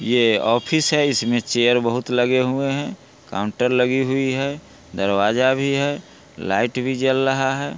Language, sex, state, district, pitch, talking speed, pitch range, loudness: Hindi, male, Bihar, Muzaffarpur, 130 Hz, 160 wpm, 120-135 Hz, -19 LUFS